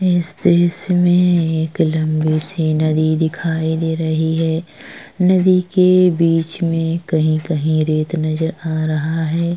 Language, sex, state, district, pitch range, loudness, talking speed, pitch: Hindi, female, Chhattisgarh, Korba, 155-175 Hz, -16 LUFS, 130 wpm, 160 Hz